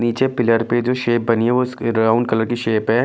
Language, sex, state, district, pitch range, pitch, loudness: Hindi, male, Delhi, New Delhi, 115-120 Hz, 120 Hz, -18 LUFS